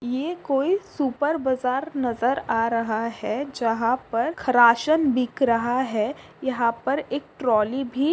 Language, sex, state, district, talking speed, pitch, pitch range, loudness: Hindi, female, Maharashtra, Pune, 140 wpm, 255 Hz, 235-280 Hz, -23 LUFS